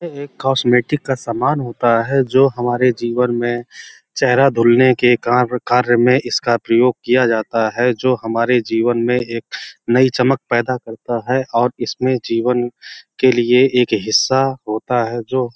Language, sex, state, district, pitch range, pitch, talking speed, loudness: Hindi, male, Uttar Pradesh, Hamirpur, 120-130 Hz, 125 Hz, 160 wpm, -16 LUFS